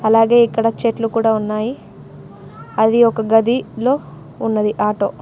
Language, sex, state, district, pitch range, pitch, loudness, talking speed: Telugu, female, Telangana, Mahabubabad, 220-230 Hz, 225 Hz, -16 LUFS, 140 wpm